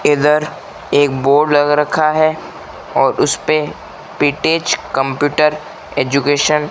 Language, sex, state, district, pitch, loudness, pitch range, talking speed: Hindi, male, Rajasthan, Bikaner, 150 Hz, -15 LUFS, 145-155 Hz, 115 wpm